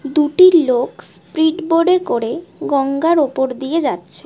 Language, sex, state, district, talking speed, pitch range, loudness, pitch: Bengali, female, West Bengal, Jhargram, 140 wpm, 265-330 Hz, -16 LUFS, 300 Hz